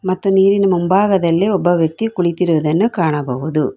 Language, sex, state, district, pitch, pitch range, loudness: Kannada, female, Karnataka, Bangalore, 180 Hz, 165-195 Hz, -15 LUFS